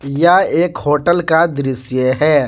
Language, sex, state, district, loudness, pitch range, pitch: Hindi, male, Jharkhand, Garhwa, -14 LUFS, 140-170 Hz, 150 Hz